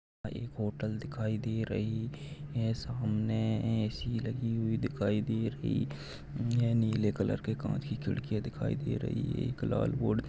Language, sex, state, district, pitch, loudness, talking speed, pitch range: Hindi, male, Maharashtra, Nagpur, 115 Hz, -34 LUFS, 165 wpm, 110-125 Hz